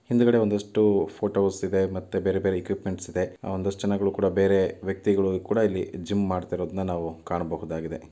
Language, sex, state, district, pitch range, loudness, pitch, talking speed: Kannada, male, Karnataka, Mysore, 90-100 Hz, -26 LUFS, 95 Hz, 150 wpm